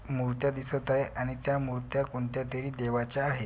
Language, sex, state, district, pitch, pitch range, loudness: Marathi, male, Maharashtra, Pune, 130 Hz, 125-140 Hz, -31 LUFS